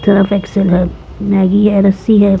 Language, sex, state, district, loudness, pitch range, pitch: Hindi, female, Chhattisgarh, Korba, -12 LUFS, 195-200 Hz, 200 Hz